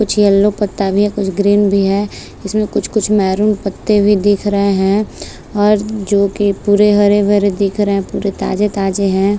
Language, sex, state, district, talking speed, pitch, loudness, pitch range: Hindi, female, Maharashtra, Chandrapur, 200 wpm, 205 Hz, -14 LUFS, 200-205 Hz